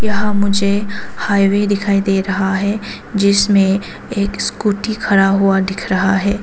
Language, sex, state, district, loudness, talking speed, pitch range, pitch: Hindi, female, Arunachal Pradesh, Papum Pare, -16 LUFS, 140 wpm, 195-205 Hz, 200 Hz